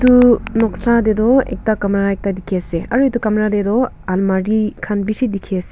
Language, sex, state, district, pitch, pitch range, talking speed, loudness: Nagamese, female, Nagaland, Kohima, 215 Hz, 200-235 Hz, 200 wpm, -16 LUFS